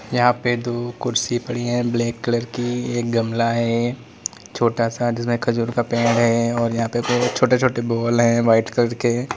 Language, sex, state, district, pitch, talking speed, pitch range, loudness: Hindi, male, Uttar Pradesh, Lalitpur, 120 Hz, 190 wpm, 115-120 Hz, -20 LUFS